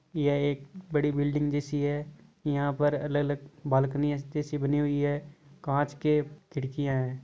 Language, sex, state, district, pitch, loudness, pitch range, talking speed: Hindi, male, Rajasthan, Churu, 145 Hz, -29 LUFS, 145-150 Hz, 155 wpm